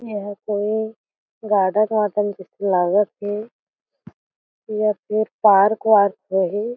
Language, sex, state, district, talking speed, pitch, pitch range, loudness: Chhattisgarhi, female, Chhattisgarh, Jashpur, 115 wpm, 210 Hz, 200-215 Hz, -20 LUFS